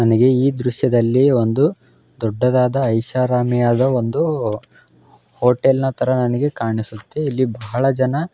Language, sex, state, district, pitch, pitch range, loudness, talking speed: Kannada, male, Karnataka, Belgaum, 125 Hz, 120-135 Hz, -18 LUFS, 115 wpm